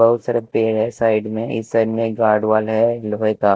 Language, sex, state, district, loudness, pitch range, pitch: Hindi, male, Chhattisgarh, Raipur, -18 LUFS, 110-115 Hz, 110 Hz